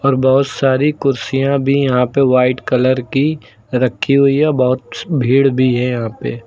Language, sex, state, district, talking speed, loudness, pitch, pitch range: Hindi, male, Uttar Pradesh, Lucknow, 175 wpm, -15 LUFS, 130 Hz, 125-140 Hz